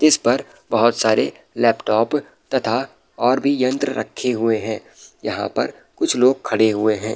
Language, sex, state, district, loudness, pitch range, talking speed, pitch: Hindi, male, Bihar, Saharsa, -19 LUFS, 110-130 Hz, 175 wpm, 120 Hz